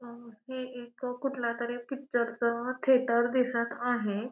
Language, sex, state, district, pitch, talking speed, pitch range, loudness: Marathi, female, Maharashtra, Pune, 245 Hz, 125 wpm, 235-255 Hz, -31 LUFS